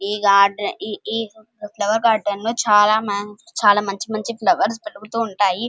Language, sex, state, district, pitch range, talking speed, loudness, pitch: Telugu, female, Andhra Pradesh, Krishna, 205-225 Hz, 145 wpm, -19 LUFS, 210 Hz